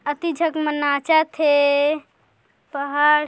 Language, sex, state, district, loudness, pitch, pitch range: Hindi, female, Chhattisgarh, Korba, -20 LUFS, 300 Hz, 285-315 Hz